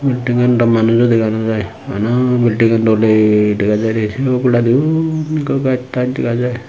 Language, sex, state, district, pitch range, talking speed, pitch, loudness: Chakma, male, Tripura, Unakoti, 110-125 Hz, 170 wpm, 120 Hz, -14 LUFS